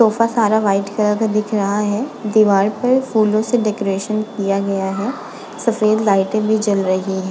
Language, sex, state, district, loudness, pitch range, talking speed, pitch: Hindi, female, Uttar Pradesh, Muzaffarnagar, -17 LUFS, 200-220 Hz, 180 wpm, 215 Hz